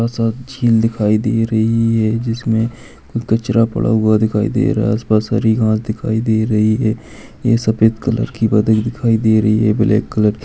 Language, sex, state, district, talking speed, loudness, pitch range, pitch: Hindi, male, Bihar, Madhepura, 195 wpm, -16 LUFS, 110-115 Hz, 110 Hz